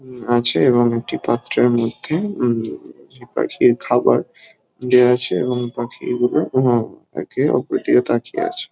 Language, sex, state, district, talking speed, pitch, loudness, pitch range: Bengali, male, West Bengal, Kolkata, 145 wpm, 125 Hz, -18 LUFS, 120-130 Hz